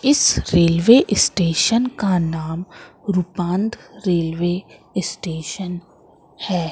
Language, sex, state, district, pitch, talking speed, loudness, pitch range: Hindi, female, Madhya Pradesh, Katni, 180 Hz, 80 wpm, -19 LUFS, 170-200 Hz